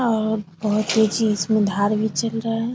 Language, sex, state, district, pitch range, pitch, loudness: Hindi, female, Bihar, Samastipur, 210-225 Hz, 220 Hz, -21 LUFS